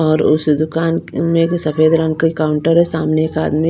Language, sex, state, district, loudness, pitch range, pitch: Hindi, female, Bihar, Patna, -15 LUFS, 155-165 Hz, 160 Hz